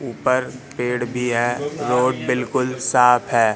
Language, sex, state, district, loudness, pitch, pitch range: Hindi, male, Madhya Pradesh, Katni, -20 LUFS, 125 Hz, 120-130 Hz